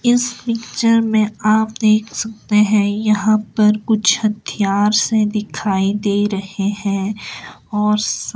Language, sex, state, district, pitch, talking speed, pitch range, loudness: Hindi, female, Himachal Pradesh, Shimla, 210 Hz, 120 wpm, 205-220 Hz, -17 LUFS